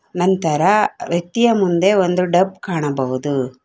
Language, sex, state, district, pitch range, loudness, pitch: Kannada, female, Karnataka, Bangalore, 150-190 Hz, -17 LUFS, 175 Hz